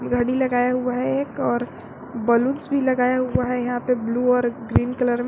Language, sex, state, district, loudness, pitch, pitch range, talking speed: Hindi, female, Jharkhand, Garhwa, -22 LUFS, 250 Hz, 245-255 Hz, 205 wpm